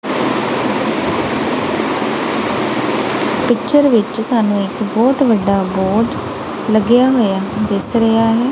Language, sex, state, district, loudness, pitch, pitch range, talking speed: Punjabi, female, Punjab, Kapurthala, -15 LUFS, 225 Hz, 200-240 Hz, 85 wpm